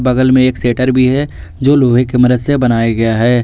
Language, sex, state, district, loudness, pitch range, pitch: Hindi, male, Jharkhand, Garhwa, -12 LUFS, 120-130 Hz, 125 Hz